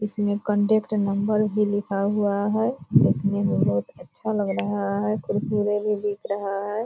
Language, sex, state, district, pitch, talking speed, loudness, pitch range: Hindi, female, Bihar, Purnia, 205 Hz, 165 wpm, -24 LUFS, 200-210 Hz